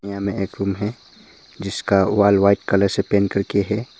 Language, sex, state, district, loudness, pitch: Hindi, male, Arunachal Pradesh, Papum Pare, -19 LUFS, 100 Hz